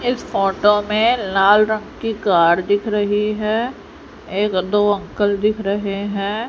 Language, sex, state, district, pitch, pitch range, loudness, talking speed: Hindi, female, Haryana, Jhajjar, 205 Hz, 200-215 Hz, -18 LUFS, 150 wpm